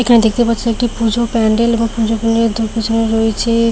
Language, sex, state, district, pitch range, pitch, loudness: Bengali, female, West Bengal, Paschim Medinipur, 225-230 Hz, 230 Hz, -14 LUFS